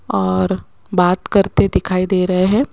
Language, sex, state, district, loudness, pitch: Hindi, female, Rajasthan, Jaipur, -16 LUFS, 185 Hz